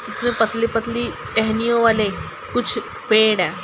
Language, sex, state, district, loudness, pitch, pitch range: Hindi, male, Bihar, Sitamarhi, -19 LUFS, 220 Hz, 215-235 Hz